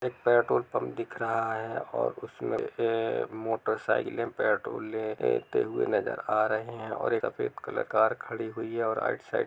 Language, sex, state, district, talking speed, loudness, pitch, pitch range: Hindi, male, Jharkhand, Jamtara, 190 wpm, -30 LUFS, 115 Hz, 110-125 Hz